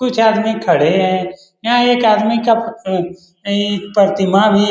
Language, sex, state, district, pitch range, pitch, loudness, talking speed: Hindi, male, Bihar, Lakhisarai, 190-225 Hz, 205 Hz, -14 LUFS, 140 wpm